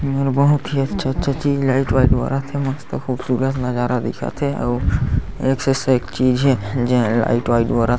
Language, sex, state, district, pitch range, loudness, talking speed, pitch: Chhattisgarhi, male, Chhattisgarh, Sarguja, 120-135 Hz, -19 LUFS, 180 wpm, 130 Hz